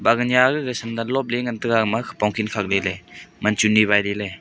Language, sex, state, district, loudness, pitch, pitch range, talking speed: Wancho, male, Arunachal Pradesh, Longding, -20 LUFS, 110 Hz, 105-120 Hz, 215 wpm